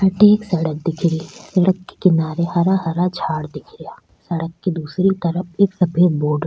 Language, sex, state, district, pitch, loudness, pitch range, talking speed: Rajasthani, female, Rajasthan, Churu, 175 Hz, -18 LUFS, 160-185 Hz, 195 wpm